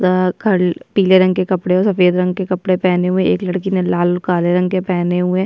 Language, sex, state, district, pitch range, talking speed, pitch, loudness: Hindi, female, Chhattisgarh, Sukma, 180-185 Hz, 275 wpm, 185 Hz, -15 LUFS